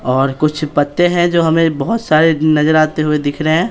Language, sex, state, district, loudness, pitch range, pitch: Hindi, male, Bihar, Patna, -14 LUFS, 150-165 Hz, 155 Hz